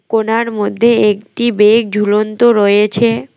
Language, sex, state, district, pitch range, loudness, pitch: Bengali, female, West Bengal, Alipurduar, 210-235 Hz, -12 LUFS, 220 Hz